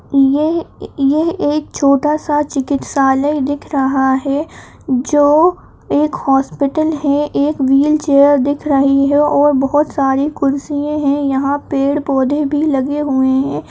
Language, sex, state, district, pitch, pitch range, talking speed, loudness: Kumaoni, female, Uttarakhand, Uttarkashi, 285 Hz, 275-295 Hz, 130 wpm, -14 LUFS